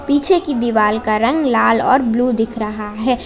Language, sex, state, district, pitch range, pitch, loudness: Hindi, female, Jharkhand, Palamu, 215-270 Hz, 235 Hz, -15 LUFS